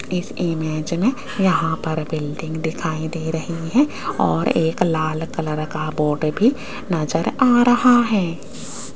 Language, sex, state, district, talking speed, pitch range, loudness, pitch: Hindi, female, Rajasthan, Jaipur, 140 wpm, 155-200 Hz, -20 LUFS, 165 Hz